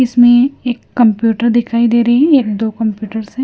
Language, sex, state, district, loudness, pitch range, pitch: Hindi, female, Himachal Pradesh, Shimla, -13 LUFS, 225-245 Hz, 235 Hz